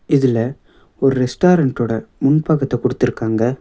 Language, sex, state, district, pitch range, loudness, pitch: Tamil, male, Tamil Nadu, Nilgiris, 120-140 Hz, -17 LUFS, 130 Hz